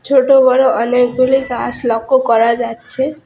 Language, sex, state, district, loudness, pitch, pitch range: Bengali, female, West Bengal, Alipurduar, -13 LUFS, 245 Hz, 230-265 Hz